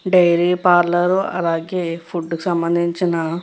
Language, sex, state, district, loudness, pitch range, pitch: Telugu, female, Andhra Pradesh, Guntur, -18 LUFS, 170-180 Hz, 175 Hz